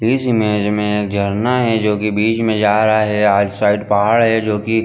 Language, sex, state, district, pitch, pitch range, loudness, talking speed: Hindi, male, Chhattisgarh, Bilaspur, 105 Hz, 105-110 Hz, -15 LUFS, 225 wpm